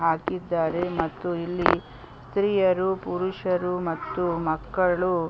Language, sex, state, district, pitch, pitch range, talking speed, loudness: Kannada, female, Karnataka, Chamarajanagar, 175 Hz, 165-180 Hz, 90 wpm, -26 LUFS